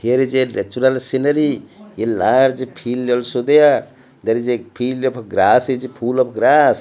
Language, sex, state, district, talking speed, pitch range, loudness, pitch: English, male, Odisha, Malkangiri, 175 wpm, 125-130 Hz, -17 LUFS, 130 Hz